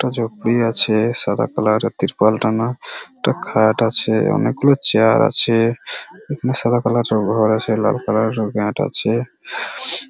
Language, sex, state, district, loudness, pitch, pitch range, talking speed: Bengali, male, West Bengal, Purulia, -17 LUFS, 115 Hz, 110-125 Hz, 150 wpm